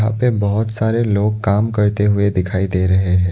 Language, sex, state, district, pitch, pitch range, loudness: Hindi, male, Assam, Kamrup Metropolitan, 105 Hz, 95-110 Hz, -16 LUFS